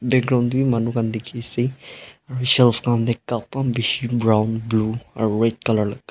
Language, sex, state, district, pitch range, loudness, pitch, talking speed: Nagamese, male, Nagaland, Dimapur, 115-125 Hz, -21 LUFS, 120 Hz, 185 wpm